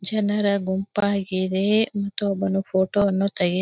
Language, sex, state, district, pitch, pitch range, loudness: Kannada, female, Karnataka, Belgaum, 200 Hz, 190-205 Hz, -22 LUFS